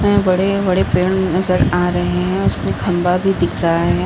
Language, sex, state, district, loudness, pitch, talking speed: Hindi, female, Bihar, Saharsa, -16 LUFS, 180 Hz, 220 wpm